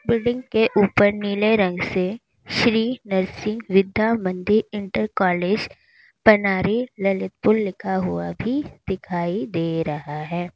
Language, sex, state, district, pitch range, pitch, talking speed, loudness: Hindi, female, Uttar Pradesh, Lalitpur, 185-220 Hz, 200 Hz, 120 wpm, -21 LUFS